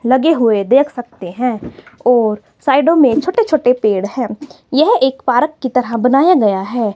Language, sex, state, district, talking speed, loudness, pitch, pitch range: Hindi, female, Himachal Pradesh, Shimla, 175 wpm, -14 LUFS, 250 Hz, 230-290 Hz